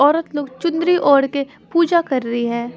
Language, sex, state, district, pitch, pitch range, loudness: Hindi, female, Haryana, Charkhi Dadri, 285 Hz, 260-335 Hz, -18 LUFS